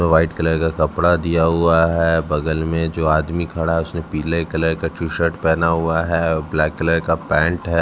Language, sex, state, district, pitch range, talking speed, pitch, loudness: Hindi, male, Chhattisgarh, Raipur, 80-85 Hz, 205 wpm, 80 Hz, -18 LUFS